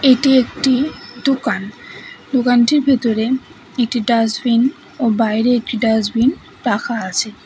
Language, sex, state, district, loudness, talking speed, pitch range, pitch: Bengali, female, West Bengal, Cooch Behar, -16 LUFS, 105 wpm, 230-260 Hz, 240 Hz